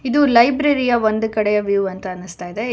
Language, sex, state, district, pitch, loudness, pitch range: Kannada, female, Karnataka, Bangalore, 220 Hz, -17 LUFS, 200-250 Hz